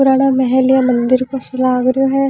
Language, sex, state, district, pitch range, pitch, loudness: Rajasthani, female, Rajasthan, Churu, 255-270 Hz, 260 Hz, -14 LUFS